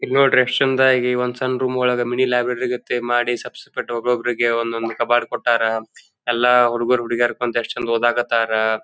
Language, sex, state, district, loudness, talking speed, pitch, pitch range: Kannada, male, Karnataka, Dharwad, -19 LUFS, 165 wpm, 120 Hz, 120-125 Hz